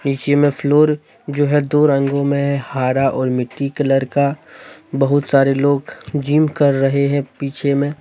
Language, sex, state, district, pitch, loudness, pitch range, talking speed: Hindi, male, Jharkhand, Deoghar, 140 Hz, -17 LUFS, 135-145 Hz, 170 wpm